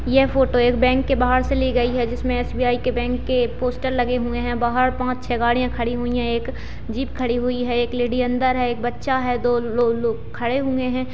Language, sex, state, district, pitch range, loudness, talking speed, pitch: Hindi, female, Bihar, Jahanabad, 240-255 Hz, -21 LUFS, 230 wpm, 245 Hz